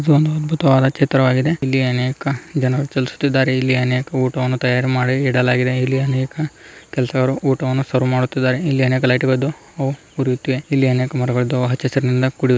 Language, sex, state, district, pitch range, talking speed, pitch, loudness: Kannada, male, Karnataka, Raichur, 130-135 Hz, 145 wpm, 130 Hz, -18 LUFS